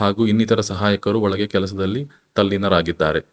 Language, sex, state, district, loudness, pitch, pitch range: Kannada, male, Karnataka, Bangalore, -19 LUFS, 100 Hz, 100-110 Hz